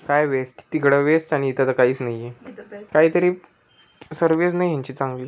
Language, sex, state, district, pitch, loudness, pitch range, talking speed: Marathi, male, Maharashtra, Pune, 145 Hz, -20 LUFS, 130-165 Hz, 160 wpm